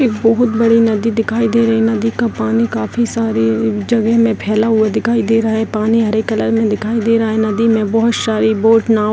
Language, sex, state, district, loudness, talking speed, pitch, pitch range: Hindi, female, Bihar, Darbhanga, -14 LUFS, 235 wpm, 225 Hz, 215-230 Hz